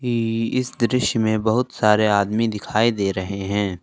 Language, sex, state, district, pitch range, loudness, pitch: Hindi, male, Jharkhand, Ranchi, 100-115 Hz, -20 LUFS, 110 Hz